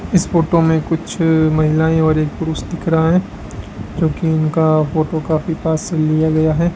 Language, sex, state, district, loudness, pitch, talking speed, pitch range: Hindi, male, Rajasthan, Bikaner, -16 LUFS, 160 Hz, 175 wpm, 155-165 Hz